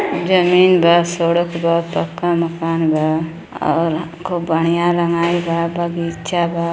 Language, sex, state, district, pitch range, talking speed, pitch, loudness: Bhojpuri, female, Uttar Pradesh, Gorakhpur, 165-175 Hz, 125 wpm, 170 Hz, -17 LUFS